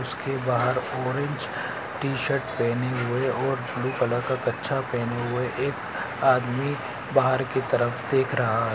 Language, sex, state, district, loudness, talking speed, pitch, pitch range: Hindi, male, Bihar, Saran, -26 LUFS, 150 wpm, 130 Hz, 125-135 Hz